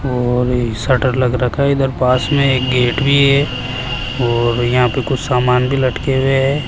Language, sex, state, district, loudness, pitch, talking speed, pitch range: Hindi, male, Rajasthan, Jaipur, -15 LUFS, 125 Hz, 200 wpm, 125-135 Hz